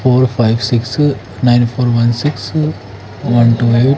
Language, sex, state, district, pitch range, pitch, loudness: Hindi, male, Haryana, Charkhi Dadri, 115-130 Hz, 120 Hz, -13 LUFS